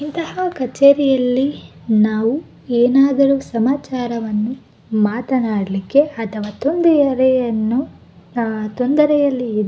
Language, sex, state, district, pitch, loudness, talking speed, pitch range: Kannada, female, Karnataka, Bellary, 250 Hz, -17 LUFS, 80 wpm, 220-275 Hz